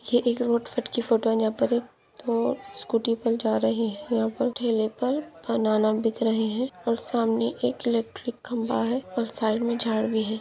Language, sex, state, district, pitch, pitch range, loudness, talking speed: Hindi, female, Maharashtra, Solapur, 230 Hz, 220-240 Hz, -26 LUFS, 200 wpm